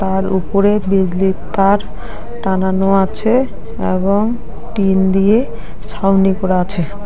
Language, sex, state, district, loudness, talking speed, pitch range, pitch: Bengali, female, West Bengal, Alipurduar, -15 LUFS, 100 wpm, 190-205 Hz, 195 Hz